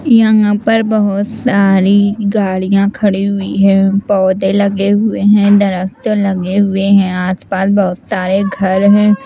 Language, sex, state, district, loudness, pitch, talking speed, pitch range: Hindi, female, Chandigarh, Chandigarh, -12 LUFS, 200 Hz, 140 wpm, 195-210 Hz